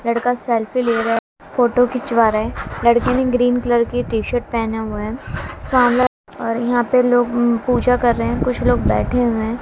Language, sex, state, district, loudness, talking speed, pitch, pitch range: Hindi, female, Bihar, West Champaran, -18 LUFS, 205 wpm, 240 Hz, 230-245 Hz